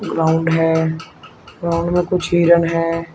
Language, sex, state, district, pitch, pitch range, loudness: Hindi, male, Uttar Pradesh, Shamli, 165 Hz, 165-170 Hz, -17 LUFS